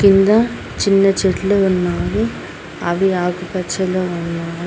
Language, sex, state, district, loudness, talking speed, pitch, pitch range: Telugu, female, Telangana, Mahabubabad, -17 LUFS, 90 wpm, 185 Hz, 175-195 Hz